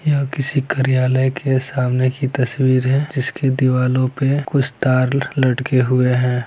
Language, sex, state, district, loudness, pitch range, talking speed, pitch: Hindi, male, Bihar, Lakhisarai, -17 LUFS, 130-135 Hz, 160 wpm, 130 Hz